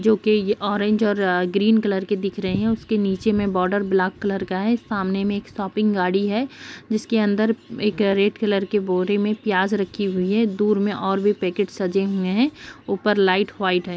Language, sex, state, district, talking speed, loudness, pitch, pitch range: Hindi, female, Uttar Pradesh, Jyotiba Phule Nagar, 210 wpm, -21 LUFS, 205 Hz, 195-215 Hz